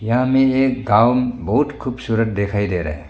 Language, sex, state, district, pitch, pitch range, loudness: Hindi, male, Arunachal Pradesh, Longding, 120 Hz, 100-130 Hz, -18 LUFS